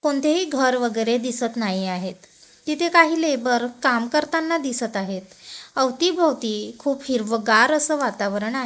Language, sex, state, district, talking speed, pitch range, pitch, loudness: Marathi, female, Maharashtra, Gondia, 130 wpm, 220-300 Hz, 250 Hz, -21 LUFS